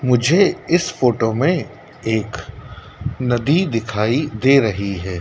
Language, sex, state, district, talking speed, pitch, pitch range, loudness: Hindi, male, Madhya Pradesh, Dhar, 115 wpm, 120 Hz, 110-140 Hz, -18 LUFS